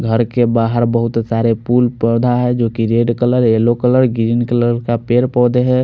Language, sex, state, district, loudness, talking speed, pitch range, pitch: Hindi, male, Odisha, Khordha, -14 LUFS, 195 wpm, 115-125 Hz, 120 Hz